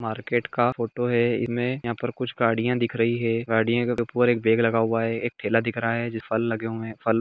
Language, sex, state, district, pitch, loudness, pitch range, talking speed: Hindi, male, Jharkhand, Jamtara, 115 Hz, -24 LUFS, 115-120 Hz, 225 wpm